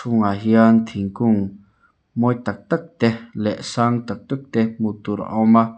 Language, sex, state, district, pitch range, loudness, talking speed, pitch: Mizo, male, Mizoram, Aizawl, 105-120 Hz, -20 LUFS, 175 wpm, 115 Hz